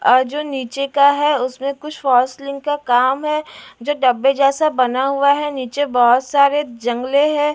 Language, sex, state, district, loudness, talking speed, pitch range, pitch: Hindi, female, Delhi, New Delhi, -17 LUFS, 165 wpm, 255-290 Hz, 275 Hz